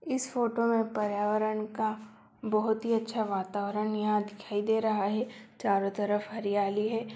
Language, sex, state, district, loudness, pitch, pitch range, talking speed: Hindi, female, Bihar, Sitamarhi, -30 LUFS, 215 Hz, 205-225 Hz, 150 wpm